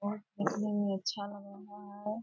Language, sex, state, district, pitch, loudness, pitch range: Hindi, female, Bihar, Purnia, 205 Hz, -36 LUFS, 200-210 Hz